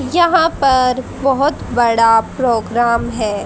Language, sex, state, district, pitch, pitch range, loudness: Hindi, female, Haryana, Rohtak, 250 Hz, 230-270 Hz, -14 LUFS